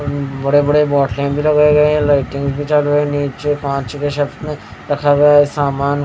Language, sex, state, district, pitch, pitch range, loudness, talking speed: Hindi, male, Haryana, Rohtak, 145 Hz, 140-145 Hz, -15 LUFS, 190 wpm